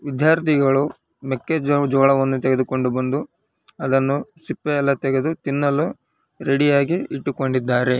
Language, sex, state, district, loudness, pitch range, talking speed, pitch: Kannada, male, Karnataka, Raichur, -20 LUFS, 135-145 Hz, 100 wpm, 140 Hz